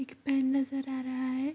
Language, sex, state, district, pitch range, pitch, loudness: Hindi, female, Bihar, Kishanganj, 260-275 Hz, 265 Hz, -31 LUFS